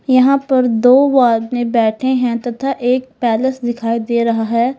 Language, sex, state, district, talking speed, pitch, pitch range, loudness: Hindi, female, Uttar Pradesh, Lalitpur, 165 wpm, 245 Hz, 235-260 Hz, -15 LUFS